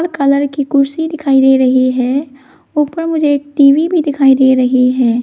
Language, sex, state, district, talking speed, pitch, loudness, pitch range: Hindi, female, Arunachal Pradesh, Lower Dibang Valley, 170 wpm, 275 Hz, -12 LUFS, 260-295 Hz